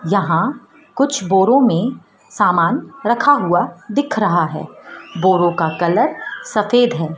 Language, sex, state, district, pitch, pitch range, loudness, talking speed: Hindi, female, Madhya Pradesh, Dhar, 200 Hz, 175-270 Hz, -16 LUFS, 125 wpm